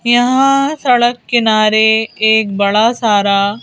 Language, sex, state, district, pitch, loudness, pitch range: Hindi, female, Madhya Pradesh, Bhopal, 220 Hz, -12 LUFS, 215-245 Hz